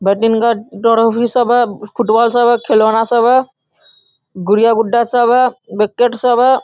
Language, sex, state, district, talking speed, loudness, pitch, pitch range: Hindi, male, Bihar, Darbhanga, 135 wpm, -13 LUFS, 230 Hz, 220-240 Hz